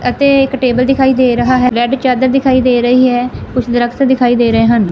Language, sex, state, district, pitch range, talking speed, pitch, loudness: Punjabi, female, Punjab, Fazilka, 240-260 Hz, 230 wpm, 250 Hz, -11 LUFS